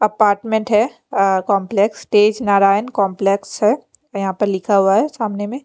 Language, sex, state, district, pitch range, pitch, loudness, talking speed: Hindi, female, Bihar, Patna, 195-220 Hz, 205 Hz, -17 LUFS, 160 wpm